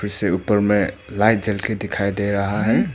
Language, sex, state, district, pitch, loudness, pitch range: Hindi, male, Arunachal Pradesh, Papum Pare, 105 Hz, -20 LUFS, 100-105 Hz